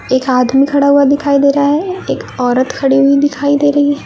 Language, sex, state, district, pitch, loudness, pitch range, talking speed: Hindi, female, Uttar Pradesh, Lalitpur, 280 Hz, -12 LUFS, 270-285 Hz, 220 wpm